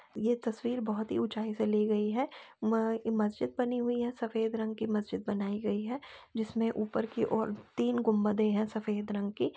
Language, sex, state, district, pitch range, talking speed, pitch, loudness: Hindi, female, Uttar Pradesh, Etah, 215-230 Hz, 205 wpm, 220 Hz, -33 LUFS